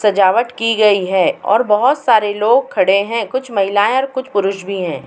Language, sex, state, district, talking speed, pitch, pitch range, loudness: Hindi, female, Uttar Pradesh, Muzaffarnagar, 190 wpm, 210 Hz, 195-250 Hz, -15 LUFS